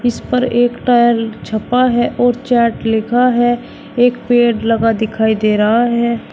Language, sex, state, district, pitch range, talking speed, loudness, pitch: Hindi, male, Uttar Pradesh, Shamli, 225-245 Hz, 160 wpm, -14 LUFS, 240 Hz